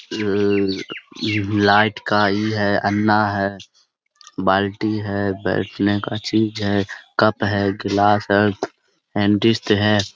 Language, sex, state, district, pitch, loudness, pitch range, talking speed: Hindi, male, Jharkhand, Sahebganj, 100 Hz, -19 LUFS, 100-105 Hz, 110 wpm